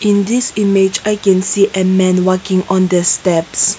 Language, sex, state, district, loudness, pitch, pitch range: English, female, Nagaland, Kohima, -13 LUFS, 190 Hz, 185-205 Hz